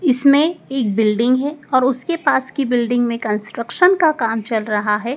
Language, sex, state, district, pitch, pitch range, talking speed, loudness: Hindi, female, Madhya Pradesh, Dhar, 250 Hz, 225-280 Hz, 185 wpm, -17 LUFS